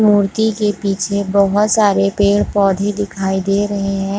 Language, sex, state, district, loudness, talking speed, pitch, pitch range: Hindi, female, Chhattisgarh, Bilaspur, -15 LUFS, 145 wpm, 200 Hz, 195-205 Hz